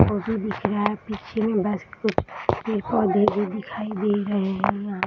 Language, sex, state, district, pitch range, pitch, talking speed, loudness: Hindi, female, Bihar, Muzaffarpur, 200-215 Hz, 205 Hz, 165 wpm, -24 LUFS